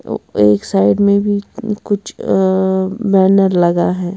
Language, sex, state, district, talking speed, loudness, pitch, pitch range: Hindi, female, Bihar, West Champaran, 145 wpm, -14 LUFS, 190 Hz, 175-200 Hz